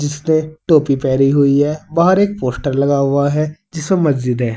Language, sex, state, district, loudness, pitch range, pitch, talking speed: Hindi, male, Uttar Pradesh, Saharanpur, -15 LUFS, 140-160 Hz, 145 Hz, 185 wpm